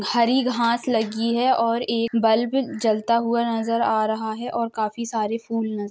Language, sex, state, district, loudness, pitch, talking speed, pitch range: Hindi, female, Uttar Pradesh, Jalaun, -22 LUFS, 230 Hz, 195 wpm, 220-235 Hz